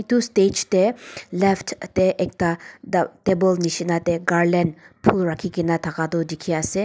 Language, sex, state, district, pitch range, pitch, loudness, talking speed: Nagamese, female, Nagaland, Dimapur, 170-195 Hz, 175 Hz, -21 LUFS, 165 wpm